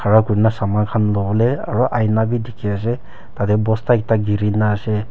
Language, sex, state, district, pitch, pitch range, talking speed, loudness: Nagamese, male, Nagaland, Kohima, 110 Hz, 105-115 Hz, 115 wpm, -18 LUFS